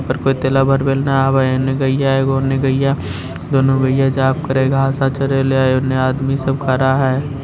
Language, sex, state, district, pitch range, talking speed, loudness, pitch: Hindi, male, Bihar, Lakhisarai, 130-135 Hz, 160 wpm, -16 LUFS, 135 Hz